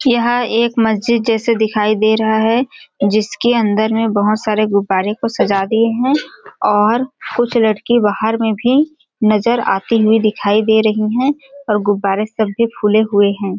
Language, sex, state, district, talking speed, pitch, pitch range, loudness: Hindi, female, Chhattisgarh, Balrampur, 170 wpm, 220 Hz, 210-235 Hz, -15 LUFS